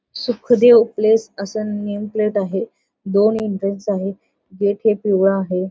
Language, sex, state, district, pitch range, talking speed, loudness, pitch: Marathi, female, Maharashtra, Solapur, 195-220 Hz, 135 wpm, -18 LUFS, 205 Hz